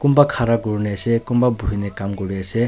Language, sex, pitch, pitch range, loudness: Nagamese, male, 115 Hz, 100-120 Hz, -20 LUFS